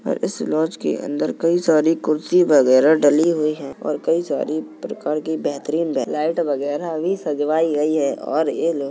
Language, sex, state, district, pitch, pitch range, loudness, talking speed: Hindi, male, Uttar Pradesh, Jalaun, 155 Hz, 150-165 Hz, -20 LUFS, 190 wpm